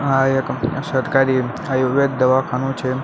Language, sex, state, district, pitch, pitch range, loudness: Gujarati, male, Gujarat, Gandhinagar, 135 Hz, 130-135 Hz, -18 LUFS